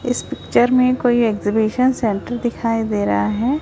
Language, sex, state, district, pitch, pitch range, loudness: Hindi, female, Chhattisgarh, Raipur, 235 Hz, 215-250 Hz, -18 LUFS